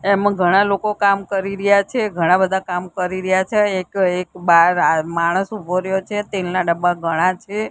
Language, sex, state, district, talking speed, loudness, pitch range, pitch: Gujarati, female, Gujarat, Gandhinagar, 185 wpm, -18 LUFS, 180-200 Hz, 190 Hz